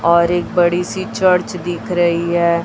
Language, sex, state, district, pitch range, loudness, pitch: Hindi, female, Chhattisgarh, Raipur, 170-180 Hz, -16 LUFS, 175 Hz